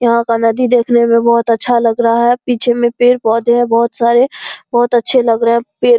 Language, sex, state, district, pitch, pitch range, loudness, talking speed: Hindi, female, Bihar, Saharsa, 235 Hz, 230-245 Hz, -12 LUFS, 230 wpm